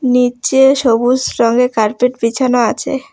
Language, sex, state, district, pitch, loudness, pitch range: Bengali, female, West Bengal, Alipurduar, 250 Hz, -13 LUFS, 235-260 Hz